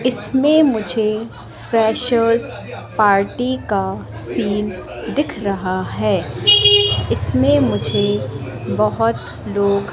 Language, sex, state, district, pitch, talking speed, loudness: Hindi, female, Madhya Pradesh, Katni, 185 Hz, 85 wpm, -17 LUFS